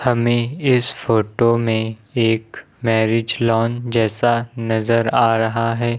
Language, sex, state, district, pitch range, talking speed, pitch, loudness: Hindi, male, Uttar Pradesh, Lucknow, 115-120 Hz, 120 wpm, 115 Hz, -18 LUFS